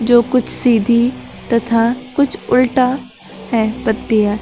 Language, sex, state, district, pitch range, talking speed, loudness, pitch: Hindi, female, Uttar Pradesh, Lucknow, 230-255 Hz, 110 wpm, -16 LUFS, 240 Hz